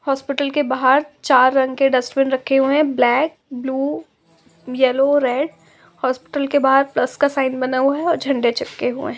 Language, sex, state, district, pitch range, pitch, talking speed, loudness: Hindi, female, Uttar Pradesh, Budaun, 260-285 Hz, 270 Hz, 185 wpm, -18 LUFS